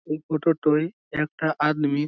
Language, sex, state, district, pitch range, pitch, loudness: Bengali, male, West Bengal, Malda, 150-160 Hz, 155 Hz, -24 LUFS